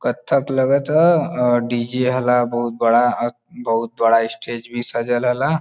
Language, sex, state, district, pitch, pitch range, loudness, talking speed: Bhojpuri, male, Uttar Pradesh, Varanasi, 120 Hz, 120-130 Hz, -18 LUFS, 150 wpm